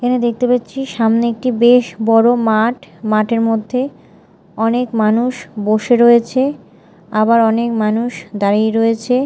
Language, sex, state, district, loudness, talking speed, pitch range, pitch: Bengali, female, Odisha, Malkangiri, -15 LUFS, 125 wpm, 215-245 Hz, 230 Hz